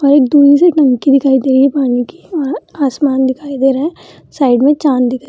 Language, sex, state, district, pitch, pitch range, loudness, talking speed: Hindi, female, Bihar, Jamui, 275 Hz, 265-290 Hz, -12 LUFS, 240 wpm